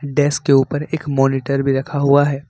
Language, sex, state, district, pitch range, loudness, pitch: Hindi, male, Jharkhand, Ranchi, 135-145 Hz, -17 LUFS, 140 Hz